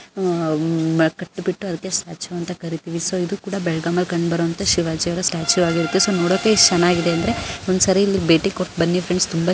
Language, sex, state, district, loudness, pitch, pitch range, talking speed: Kannada, female, Karnataka, Belgaum, -19 LUFS, 175 Hz, 165-185 Hz, 145 wpm